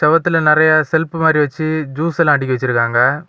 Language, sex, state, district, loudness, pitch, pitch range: Tamil, male, Tamil Nadu, Kanyakumari, -14 LUFS, 155 Hz, 145-160 Hz